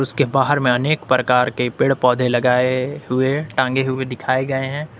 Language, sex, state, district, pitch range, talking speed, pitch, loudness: Hindi, male, Jharkhand, Ranchi, 125-135 Hz, 180 wpm, 130 Hz, -18 LUFS